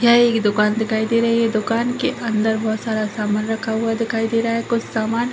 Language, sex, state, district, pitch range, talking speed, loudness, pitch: Hindi, female, Chhattisgarh, Raigarh, 220-230 Hz, 235 wpm, -19 LUFS, 225 Hz